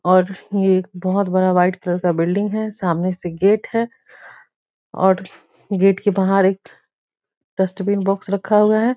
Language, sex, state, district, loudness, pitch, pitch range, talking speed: Hindi, female, Bihar, Muzaffarpur, -18 LUFS, 195 Hz, 185-205 Hz, 165 wpm